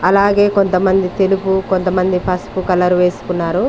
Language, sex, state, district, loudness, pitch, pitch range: Telugu, female, Telangana, Mahabubabad, -15 LUFS, 185 Hz, 180-190 Hz